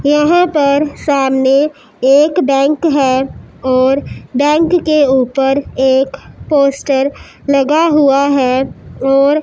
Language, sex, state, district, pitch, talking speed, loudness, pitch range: Hindi, male, Punjab, Pathankot, 280 Hz, 100 wpm, -12 LUFS, 270-295 Hz